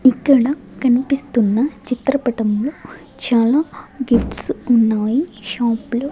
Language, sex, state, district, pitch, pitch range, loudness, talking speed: Telugu, female, Andhra Pradesh, Sri Satya Sai, 250 Hz, 235-275 Hz, -18 LUFS, 90 wpm